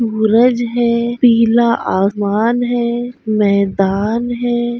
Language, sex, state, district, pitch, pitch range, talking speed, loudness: Hindi, female, Bihar, Araria, 235 Hz, 215-240 Hz, 85 wpm, -14 LUFS